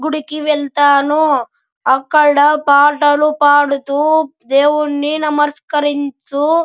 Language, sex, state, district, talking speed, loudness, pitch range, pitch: Telugu, male, Andhra Pradesh, Anantapur, 70 wpm, -13 LUFS, 285-300 Hz, 290 Hz